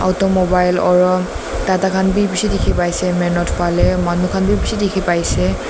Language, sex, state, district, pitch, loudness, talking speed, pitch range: Nagamese, female, Nagaland, Dimapur, 185 Hz, -16 LUFS, 220 wpm, 175-190 Hz